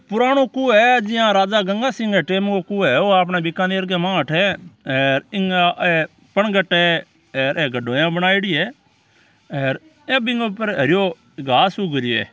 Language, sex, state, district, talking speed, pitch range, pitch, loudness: Marwari, male, Rajasthan, Churu, 175 wpm, 165-210 Hz, 190 Hz, -18 LUFS